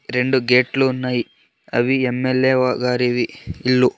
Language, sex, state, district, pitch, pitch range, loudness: Telugu, male, Andhra Pradesh, Sri Satya Sai, 125 Hz, 125-130 Hz, -19 LUFS